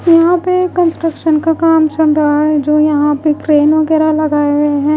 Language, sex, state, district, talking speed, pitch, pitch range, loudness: Hindi, female, Bihar, West Champaran, 195 wpm, 310 Hz, 300-325 Hz, -12 LUFS